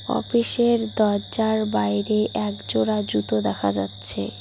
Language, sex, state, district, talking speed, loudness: Bengali, female, West Bengal, Cooch Behar, 95 wpm, -19 LUFS